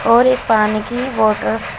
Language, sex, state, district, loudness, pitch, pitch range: Hindi, female, Uttar Pradesh, Shamli, -15 LUFS, 225 Hz, 215-245 Hz